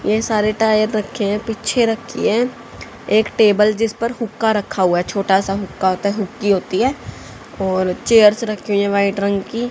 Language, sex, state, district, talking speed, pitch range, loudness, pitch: Hindi, female, Haryana, Charkhi Dadri, 200 wpm, 200-225 Hz, -17 LUFS, 210 Hz